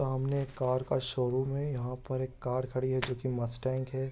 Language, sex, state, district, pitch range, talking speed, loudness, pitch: Hindi, male, Uttarakhand, Tehri Garhwal, 125-130 Hz, 235 wpm, -32 LUFS, 130 Hz